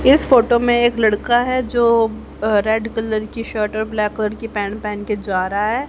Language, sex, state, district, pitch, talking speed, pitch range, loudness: Hindi, female, Haryana, Rohtak, 220 Hz, 225 wpm, 210-240 Hz, -18 LUFS